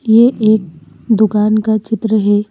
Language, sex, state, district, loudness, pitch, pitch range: Hindi, female, Madhya Pradesh, Bhopal, -13 LUFS, 215 Hz, 210-220 Hz